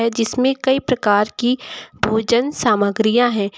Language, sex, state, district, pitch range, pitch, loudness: Hindi, female, Uttar Pradesh, Lucknow, 215-255 Hz, 235 Hz, -18 LUFS